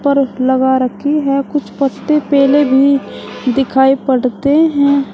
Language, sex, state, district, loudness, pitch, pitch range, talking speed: Hindi, female, Uttar Pradesh, Shamli, -13 LUFS, 275 Hz, 260-285 Hz, 130 wpm